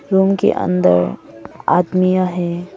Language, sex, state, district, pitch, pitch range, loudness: Hindi, female, Arunachal Pradesh, Papum Pare, 180 Hz, 170-190 Hz, -16 LUFS